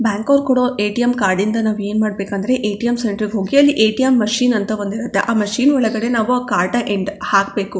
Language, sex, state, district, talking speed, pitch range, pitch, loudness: Kannada, female, Karnataka, Chamarajanagar, 175 wpm, 205-245 Hz, 220 Hz, -17 LUFS